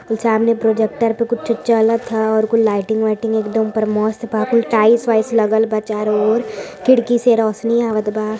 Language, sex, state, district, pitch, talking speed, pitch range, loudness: Hindi, female, Uttar Pradesh, Varanasi, 220 Hz, 165 wpm, 215-230 Hz, -16 LUFS